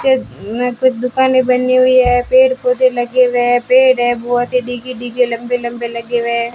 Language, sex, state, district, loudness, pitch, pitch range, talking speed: Hindi, female, Rajasthan, Bikaner, -14 LUFS, 250 Hz, 240-255 Hz, 165 wpm